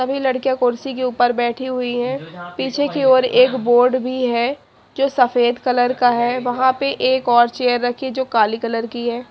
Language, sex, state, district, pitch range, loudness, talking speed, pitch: Hindi, female, Haryana, Charkhi Dadri, 240-260 Hz, -18 LUFS, 200 wpm, 250 Hz